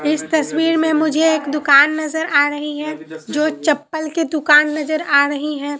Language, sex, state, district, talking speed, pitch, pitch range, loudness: Hindi, female, Bihar, Katihar, 185 wpm, 305 Hz, 290-315 Hz, -16 LUFS